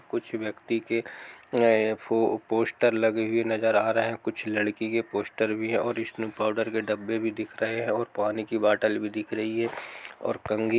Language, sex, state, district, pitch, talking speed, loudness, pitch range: Hindi, male, Bihar, East Champaran, 110 Hz, 210 wpm, -27 LUFS, 110-115 Hz